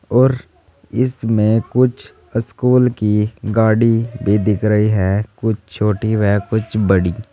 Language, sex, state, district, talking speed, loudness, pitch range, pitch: Hindi, male, Uttar Pradesh, Saharanpur, 125 wpm, -16 LUFS, 105-115 Hz, 110 Hz